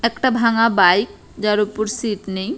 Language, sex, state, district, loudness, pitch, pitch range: Bengali, female, West Bengal, Purulia, -18 LUFS, 215 Hz, 205-235 Hz